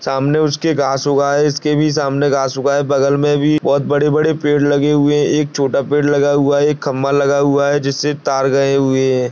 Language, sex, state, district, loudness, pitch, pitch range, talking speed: Hindi, male, Chhattisgarh, Bastar, -15 LUFS, 145 Hz, 140-145 Hz, 230 wpm